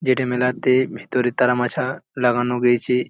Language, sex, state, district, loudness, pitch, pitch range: Bengali, male, West Bengal, Jalpaiguri, -20 LUFS, 125 Hz, 125-130 Hz